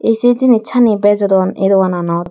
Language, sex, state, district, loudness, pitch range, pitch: Chakma, female, Tripura, Dhalai, -12 LUFS, 190-230 Hz, 205 Hz